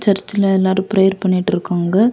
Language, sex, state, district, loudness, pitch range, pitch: Tamil, female, Tamil Nadu, Kanyakumari, -16 LUFS, 185-200 Hz, 190 Hz